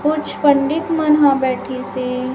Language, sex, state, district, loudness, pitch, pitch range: Hindi, female, Chhattisgarh, Raipur, -17 LUFS, 280 Hz, 255-300 Hz